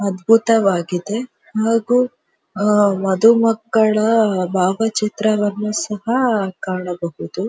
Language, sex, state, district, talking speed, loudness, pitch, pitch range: Kannada, female, Karnataka, Dharwad, 55 wpm, -17 LUFS, 210 Hz, 190-225 Hz